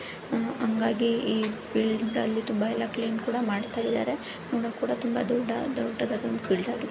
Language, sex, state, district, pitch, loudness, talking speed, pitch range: Kannada, male, Karnataka, Bijapur, 230 Hz, -28 LUFS, 115 wpm, 220-240 Hz